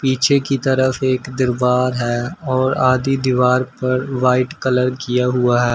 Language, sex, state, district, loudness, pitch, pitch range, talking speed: Hindi, male, Uttar Pradesh, Shamli, -17 LUFS, 130 Hz, 125-130 Hz, 165 wpm